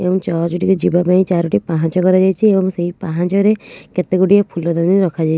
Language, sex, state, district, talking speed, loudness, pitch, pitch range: Odia, female, Odisha, Nuapada, 210 wpm, -15 LUFS, 180 Hz, 170-190 Hz